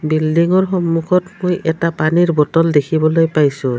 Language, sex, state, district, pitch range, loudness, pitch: Assamese, female, Assam, Kamrup Metropolitan, 155-175 Hz, -15 LUFS, 165 Hz